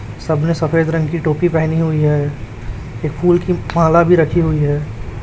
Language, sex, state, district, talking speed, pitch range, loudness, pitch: Hindi, male, Chhattisgarh, Raipur, 195 wpm, 145-165 Hz, -15 LUFS, 160 Hz